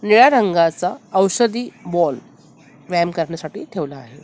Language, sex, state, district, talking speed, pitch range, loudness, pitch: Marathi, female, Maharashtra, Mumbai Suburban, 115 wpm, 155-195 Hz, -18 LUFS, 170 Hz